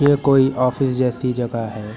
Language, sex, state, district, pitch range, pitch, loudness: Hindi, male, Uttar Pradesh, Lucknow, 120-135 Hz, 125 Hz, -19 LUFS